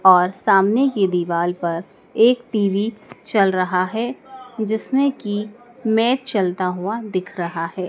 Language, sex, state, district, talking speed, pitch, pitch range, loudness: Hindi, female, Madhya Pradesh, Dhar, 135 wpm, 205 Hz, 185-235 Hz, -20 LUFS